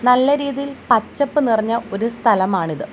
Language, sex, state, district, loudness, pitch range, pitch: Malayalam, female, Kerala, Kollam, -18 LUFS, 215-280 Hz, 235 Hz